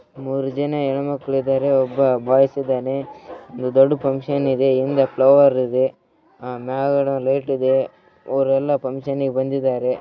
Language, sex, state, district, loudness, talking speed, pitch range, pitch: Kannada, male, Karnataka, Raichur, -19 LUFS, 125 wpm, 130-140 Hz, 135 Hz